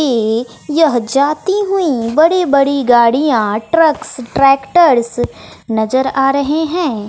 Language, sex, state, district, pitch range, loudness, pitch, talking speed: Hindi, female, Bihar, West Champaran, 235-315 Hz, -13 LUFS, 275 Hz, 110 wpm